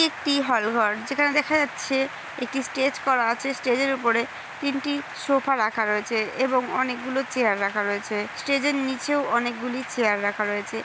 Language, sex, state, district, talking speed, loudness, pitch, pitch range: Bengali, female, West Bengal, Purulia, 160 wpm, -24 LUFS, 255 Hz, 225-275 Hz